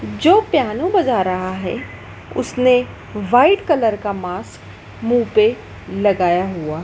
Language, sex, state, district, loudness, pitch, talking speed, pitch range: Hindi, female, Madhya Pradesh, Dhar, -17 LUFS, 205 Hz, 125 wpm, 180-255 Hz